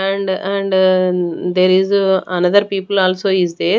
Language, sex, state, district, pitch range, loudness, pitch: English, female, Haryana, Rohtak, 185-195 Hz, -15 LUFS, 190 Hz